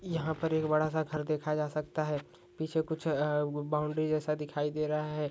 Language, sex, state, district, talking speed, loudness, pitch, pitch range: Hindi, male, Rajasthan, Churu, 205 wpm, -33 LUFS, 155 Hz, 150-155 Hz